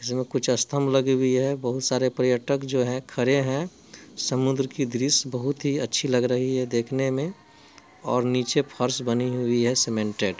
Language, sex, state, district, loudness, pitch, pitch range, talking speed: Hindi, male, Bihar, Muzaffarpur, -24 LUFS, 130 Hz, 125-135 Hz, 185 wpm